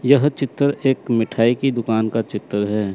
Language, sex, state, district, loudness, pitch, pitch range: Hindi, male, Chandigarh, Chandigarh, -19 LUFS, 115 Hz, 110-135 Hz